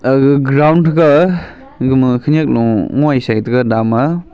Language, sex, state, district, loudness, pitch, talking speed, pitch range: Wancho, male, Arunachal Pradesh, Longding, -12 LUFS, 135 Hz, 125 wpm, 125-155 Hz